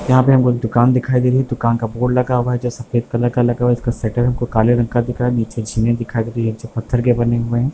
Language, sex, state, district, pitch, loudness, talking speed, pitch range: Hindi, female, Bihar, Darbhanga, 120 Hz, -17 LUFS, 335 wpm, 115-125 Hz